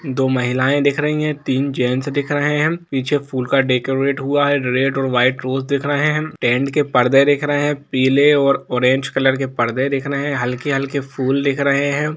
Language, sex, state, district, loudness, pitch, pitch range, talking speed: Hindi, male, Jharkhand, Jamtara, -17 LUFS, 140 Hz, 130-145 Hz, 215 wpm